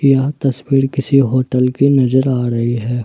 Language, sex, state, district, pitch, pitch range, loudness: Hindi, male, Jharkhand, Ranchi, 135 Hz, 125-135 Hz, -15 LUFS